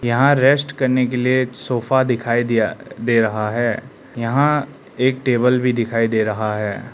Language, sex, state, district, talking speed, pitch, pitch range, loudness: Hindi, male, Arunachal Pradesh, Lower Dibang Valley, 165 wpm, 125 Hz, 115-130 Hz, -18 LUFS